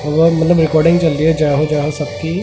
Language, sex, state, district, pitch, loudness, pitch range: Hindi, male, Delhi, New Delhi, 160 Hz, -14 LUFS, 150-165 Hz